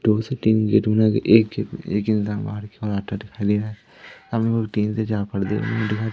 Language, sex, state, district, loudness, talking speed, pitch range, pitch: Hindi, male, Madhya Pradesh, Katni, -22 LUFS, 110 wpm, 105-110 Hz, 105 Hz